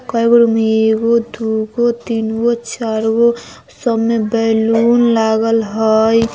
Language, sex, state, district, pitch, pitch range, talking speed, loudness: Bajjika, female, Bihar, Vaishali, 225 Hz, 220-235 Hz, 140 wpm, -14 LUFS